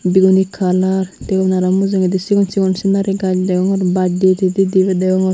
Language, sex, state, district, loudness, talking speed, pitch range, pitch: Chakma, female, Tripura, Unakoti, -15 LUFS, 170 wpm, 185-195 Hz, 190 Hz